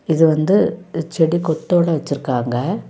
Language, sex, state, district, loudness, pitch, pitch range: Tamil, female, Tamil Nadu, Kanyakumari, -18 LUFS, 160 Hz, 155-170 Hz